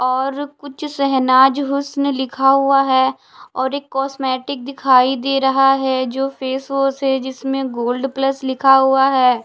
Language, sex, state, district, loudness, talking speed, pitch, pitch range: Hindi, female, Delhi, New Delhi, -16 LUFS, 150 wpm, 270 Hz, 260-275 Hz